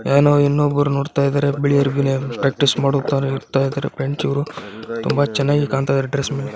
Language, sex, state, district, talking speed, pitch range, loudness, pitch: Kannada, male, Karnataka, Bijapur, 135 wpm, 135-145 Hz, -18 LUFS, 140 Hz